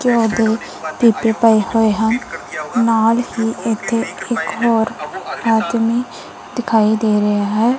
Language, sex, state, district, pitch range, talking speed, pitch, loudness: Punjabi, female, Punjab, Kapurthala, 220-235 Hz, 130 wpm, 225 Hz, -17 LUFS